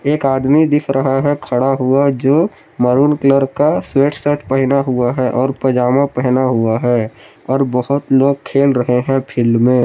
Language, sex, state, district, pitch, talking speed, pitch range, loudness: Hindi, male, Jharkhand, Palamu, 135 Hz, 175 wpm, 125-140 Hz, -14 LUFS